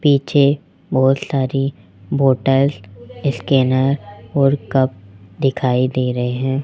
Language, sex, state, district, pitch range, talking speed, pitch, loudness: Hindi, male, Rajasthan, Jaipur, 125-140 Hz, 100 wpm, 135 Hz, -18 LUFS